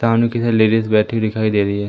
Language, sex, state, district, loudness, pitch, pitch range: Hindi, male, Madhya Pradesh, Umaria, -16 LUFS, 110 Hz, 110-115 Hz